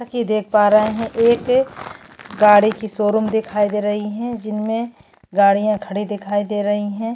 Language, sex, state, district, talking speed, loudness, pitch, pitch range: Hindi, female, Chhattisgarh, Jashpur, 175 wpm, -18 LUFS, 215 Hz, 205-225 Hz